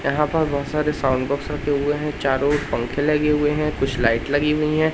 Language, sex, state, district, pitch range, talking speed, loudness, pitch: Hindi, male, Madhya Pradesh, Katni, 140-150 Hz, 245 wpm, -21 LUFS, 145 Hz